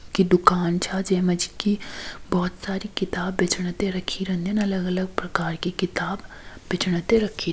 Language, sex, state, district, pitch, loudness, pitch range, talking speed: Hindi, female, Uttarakhand, Tehri Garhwal, 185 Hz, -24 LUFS, 180-195 Hz, 185 wpm